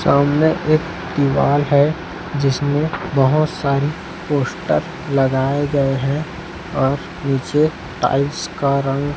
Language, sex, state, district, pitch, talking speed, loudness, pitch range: Hindi, male, Chhattisgarh, Raipur, 145 Hz, 105 wpm, -18 LUFS, 140-155 Hz